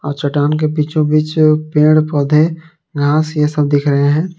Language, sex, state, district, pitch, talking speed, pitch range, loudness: Hindi, male, Jharkhand, Palamu, 150 Hz, 180 wpm, 145-155 Hz, -14 LUFS